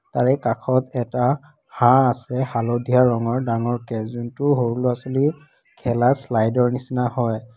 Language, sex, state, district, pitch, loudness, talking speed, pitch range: Assamese, female, Assam, Kamrup Metropolitan, 125 Hz, -21 LUFS, 125 wpm, 120-130 Hz